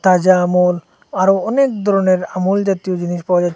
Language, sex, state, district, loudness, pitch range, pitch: Bengali, male, Assam, Hailakandi, -15 LUFS, 180-195 Hz, 185 Hz